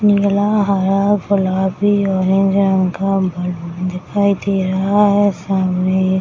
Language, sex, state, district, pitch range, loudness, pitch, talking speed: Hindi, female, Bihar, Madhepura, 185-200 Hz, -16 LUFS, 195 Hz, 125 wpm